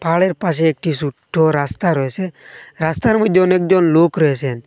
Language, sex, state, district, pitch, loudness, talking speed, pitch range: Bengali, male, Assam, Hailakandi, 165 Hz, -16 LUFS, 155 wpm, 150-185 Hz